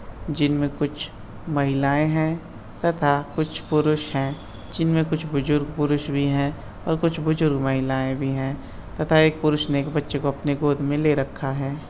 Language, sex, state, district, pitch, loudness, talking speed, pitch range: Hindi, male, Uttar Pradesh, Budaun, 145 Hz, -23 LUFS, 175 wpm, 140-155 Hz